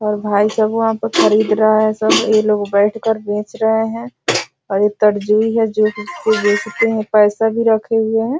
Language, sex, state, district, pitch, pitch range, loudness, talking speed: Hindi, female, Bihar, Jahanabad, 215 Hz, 210-225 Hz, -15 LUFS, 205 wpm